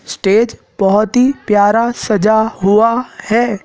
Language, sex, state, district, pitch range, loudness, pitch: Hindi, male, Madhya Pradesh, Dhar, 205-235 Hz, -13 LUFS, 220 Hz